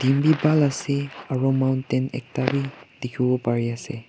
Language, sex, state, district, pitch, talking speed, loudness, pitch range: Nagamese, male, Nagaland, Kohima, 130 Hz, 130 wpm, -23 LUFS, 125-140 Hz